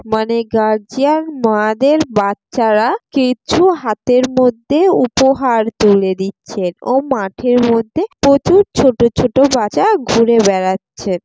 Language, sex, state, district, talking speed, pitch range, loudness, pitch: Bengali, female, West Bengal, Jalpaiguri, 105 wpm, 215-270 Hz, -14 LUFS, 240 Hz